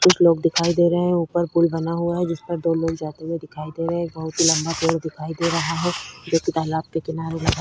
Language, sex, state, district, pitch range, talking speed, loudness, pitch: Hindi, female, Chhattisgarh, Korba, 160-170 Hz, 260 wpm, -22 LUFS, 165 Hz